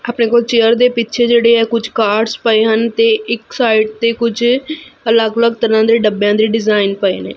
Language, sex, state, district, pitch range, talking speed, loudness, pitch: Punjabi, female, Punjab, Fazilka, 220-235 Hz, 195 wpm, -13 LUFS, 230 Hz